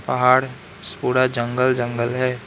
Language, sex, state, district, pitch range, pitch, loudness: Hindi, male, Arunachal Pradesh, Lower Dibang Valley, 120-130 Hz, 125 Hz, -20 LUFS